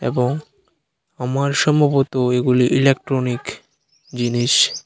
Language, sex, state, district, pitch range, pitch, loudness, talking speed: Bengali, male, Tripura, Unakoti, 125-140 Hz, 130 Hz, -18 LUFS, 75 wpm